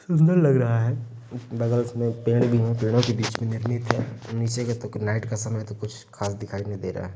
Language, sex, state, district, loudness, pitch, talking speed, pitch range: Hindi, male, Uttar Pradesh, Varanasi, -25 LUFS, 115 Hz, 250 wpm, 110-120 Hz